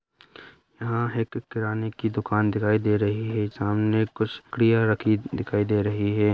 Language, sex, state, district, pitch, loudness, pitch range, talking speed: Hindi, male, Bihar, Madhepura, 110 Hz, -25 LUFS, 105-115 Hz, 160 wpm